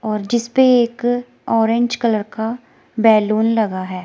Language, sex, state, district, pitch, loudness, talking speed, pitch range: Hindi, female, Himachal Pradesh, Shimla, 225 Hz, -17 LUFS, 150 wpm, 215-240 Hz